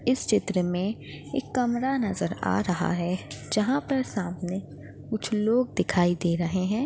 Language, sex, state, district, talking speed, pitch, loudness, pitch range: Hindi, female, Maharashtra, Sindhudurg, 155 wpm, 200 Hz, -27 LUFS, 175-240 Hz